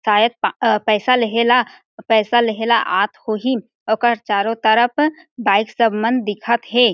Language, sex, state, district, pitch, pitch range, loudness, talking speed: Chhattisgarhi, female, Chhattisgarh, Jashpur, 230 Hz, 220-240 Hz, -17 LUFS, 175 wpm